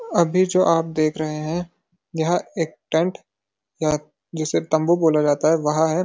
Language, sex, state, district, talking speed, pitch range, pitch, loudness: Hindi, male, Uttarakhand, Uttarkashi, 170 wpm, 155-175 Hz, 160 Hz, -21 LUFS